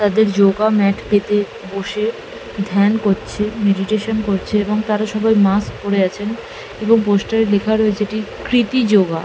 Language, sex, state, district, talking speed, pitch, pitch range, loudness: Bengali, female, West Bengal, Malda, 150 wpm, 210 Hz, 200-220 Hz, -17 LUFS